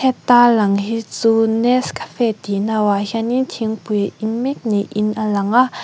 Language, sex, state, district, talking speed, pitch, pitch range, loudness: Mizo, female, Mizoram, Aizawl, 195 wpm, 225 Hz, 210-240 Hz, -17 LUFS